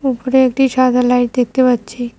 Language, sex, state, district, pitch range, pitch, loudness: Bengali, female, West Bengal, Cooch Behar, 245-260 Hz, 250 Hz, -14 LUFS